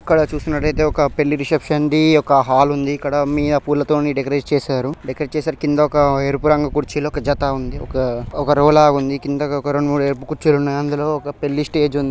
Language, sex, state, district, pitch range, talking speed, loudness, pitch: Telugu, male, Telangana, Nalgonda, 140-150 Hz, 195 wpm, -17 LUFS, 145 Hz